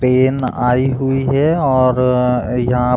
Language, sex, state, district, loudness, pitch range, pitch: Hindi, male, Uttar Pradesh, Deoria, -15 LUFS, 125-135 Hz, 130 Hz